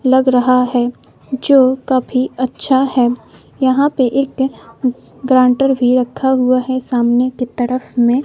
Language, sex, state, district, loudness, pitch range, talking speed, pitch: Hindi, female, Bihar, West Champaran, -15 LUFS, 250-265 Hz, 140 wpm, 255 Hz